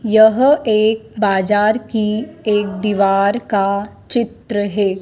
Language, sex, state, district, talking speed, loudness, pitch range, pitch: Hindi, female, Madhya Pradesh, Dhar, 110 wpm, -16 LUFS, 200-220 Hz, 210 Hz